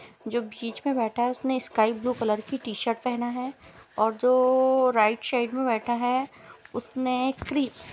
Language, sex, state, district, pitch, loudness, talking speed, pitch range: Hindi, female, Bihar, Sitamarhi, 245 Hz, -26 LUFS, 180 wpm, 230-255 Hz